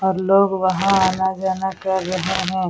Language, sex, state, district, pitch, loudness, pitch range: Hindi, female, Bihar, Vaishali, 190 Hz, -19 LUFS, 185-190 Hz